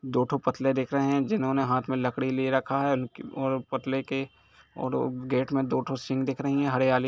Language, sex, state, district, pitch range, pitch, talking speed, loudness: Hindi, male, Jharkhand, Jamtara, 130-135 Hz, 130 Hz, 230 wpm, -28 LUFS